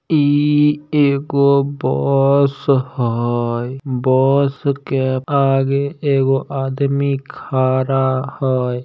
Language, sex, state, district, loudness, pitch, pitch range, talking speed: Maithili, male, Bihar, Samastipur, -17 LUFS, 135 Hz, 130-140 Hz, 75 wpm